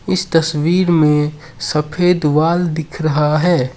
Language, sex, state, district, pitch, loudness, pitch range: Hindi, male, Assam, Sonitpur, 155 Hz, -15 LUFS, 150-175 Hz